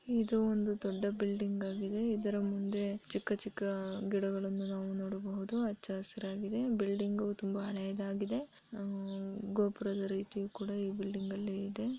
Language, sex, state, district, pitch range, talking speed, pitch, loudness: Kannada, female, Karnataka, Dharwad, 195-210 Hz, 130 wpm, 200 Hz, -37 LUFS